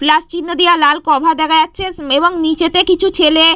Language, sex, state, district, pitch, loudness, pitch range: Bengali, female, West Bengal, Purulia, 325 Hz, -12 LUFS, 310-345 Hz